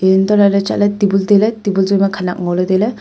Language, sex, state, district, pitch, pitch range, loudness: Wancho, female, Arunachal Pradesh, Longding, 195 Hz, 190-205 Hz, -14 LUFS